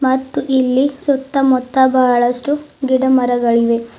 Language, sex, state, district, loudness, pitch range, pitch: Kannada, female, Karnataka, Bidar, -15 LUFS, 250-270 Hz, 260 Hz